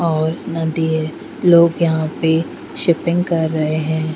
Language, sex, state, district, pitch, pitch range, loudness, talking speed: Hindi, female, Bihar, Patna, 160 Hz, 160-170 Hz, -17 LUFS, 145 wpm